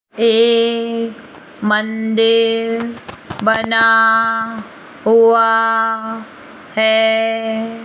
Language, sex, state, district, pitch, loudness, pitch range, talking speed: Hindi, female, Rajasthan, Jaipur, 225 Hz, -14 LUFS, 225-230 Hz, 40 wpm